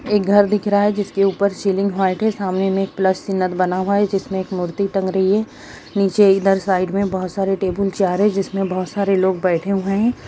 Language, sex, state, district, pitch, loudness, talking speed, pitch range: Hindi, female, Bihar, Madhepura, 195 Hz, -18 LUFS, 225 wpm, 190-200 Hz